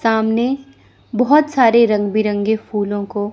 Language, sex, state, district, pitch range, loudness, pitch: Hindi, female, Chandigarh, Chandigarh, 210-245 Hz, -16 LUFS, 220 Hz